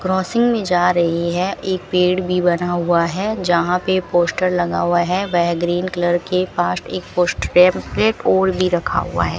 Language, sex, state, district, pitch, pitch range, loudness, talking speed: Hindi, female, Rajasthan, Bikaner, 180 Hz, 175-185 Hz, -18 LUFS, 190 wpm